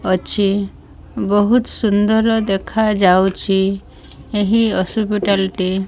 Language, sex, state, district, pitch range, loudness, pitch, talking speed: Odia, female, Odisha, Malkangiri, 190-220 Hz, -16 LUFS, 200 Hz, 70 wpm